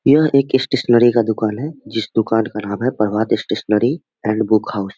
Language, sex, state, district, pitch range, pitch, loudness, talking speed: Hindi, male, Bihar, Muzaffarpur, 105-130 Hz, 110 Hz, -17 LUFS, 205 wpm